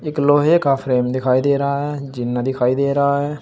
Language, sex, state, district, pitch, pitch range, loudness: Hindi, male, Uttar Pradesh, Saharanpur, 140 Hz, 130-145 Hz, -18 LUFS